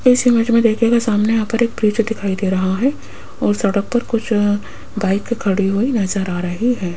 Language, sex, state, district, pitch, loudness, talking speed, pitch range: Hindi, female, Rajasthan, Jaipur, 215 Hz, -17 LUFS, 205 wpm, 195-235 Hz